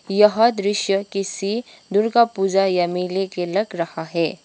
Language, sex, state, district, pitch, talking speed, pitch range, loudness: Hindi, female, Sikkim, Gangtok, 195 Hz, 150 wpm, 180-210 Hz, -20 LUFS